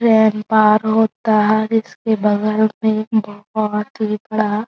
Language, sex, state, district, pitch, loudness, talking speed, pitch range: Hindi, female, Bihar, Araria, 215 Hz, -17 LUFS, 155 wpm, 210-220 Hz